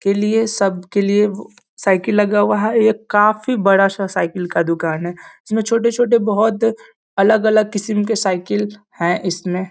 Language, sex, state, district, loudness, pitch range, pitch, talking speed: Hindi, male, Bihar, East Champaran, -17 LUFS, 190-220 Hz, 205 Hz, 160 wpm